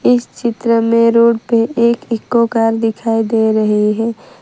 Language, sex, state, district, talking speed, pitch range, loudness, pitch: Hindi, female, Gujarat, Valsad, 165 wpm, 225-235 Hz, -14 LUFS, 230 Hz